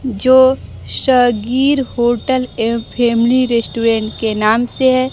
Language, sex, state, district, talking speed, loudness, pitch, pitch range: Hindi, female, Bihar, Kaimur, 115 wpm, -14 LUFS, 240 Hz, 230-260 Hz